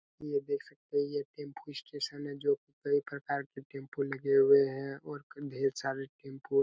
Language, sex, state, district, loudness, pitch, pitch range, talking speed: Hindi, male, Chhattisgarh, Raigarh, -33 LUFS, 140 Hz, 135-145 Hz, 180 wpm